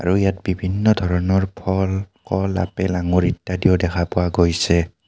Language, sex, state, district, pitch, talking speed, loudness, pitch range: Assamese, male, Assam, Kamrup Metropolitan, 95 Hz, 140 wpm, -20 LUFS, 90-95 Hz